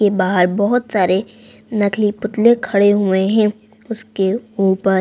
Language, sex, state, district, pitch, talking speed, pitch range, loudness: Hindi, female, Madhya Pradesh, Bhopal, 205 Hz, 130 wpm, 195-220 Hz, -16 LUFS